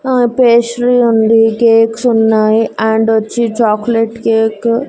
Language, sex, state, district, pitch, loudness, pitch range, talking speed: Telugu, female, Andhra Pradesh, Annamaya, 225 Hz, -11 LUFS, 220-235 Hz, 125 wpm